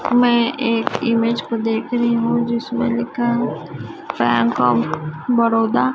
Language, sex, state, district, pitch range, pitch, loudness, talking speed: Hindi, female, Chhattisgarh, Raipur, 150-235 Hz, 230 Hz, -18 LUFS, 140 wpm